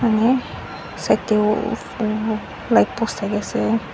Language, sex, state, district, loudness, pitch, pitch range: Nagamese, female, Nagaland, Dimapur, -20 LUFS, 220 Hz, 210-230 Hz